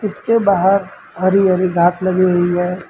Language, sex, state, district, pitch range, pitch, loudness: Hindi, male, Uttar Pradesh, Lucknow, 180-195 Hz, 185 Hz, -15 LUFS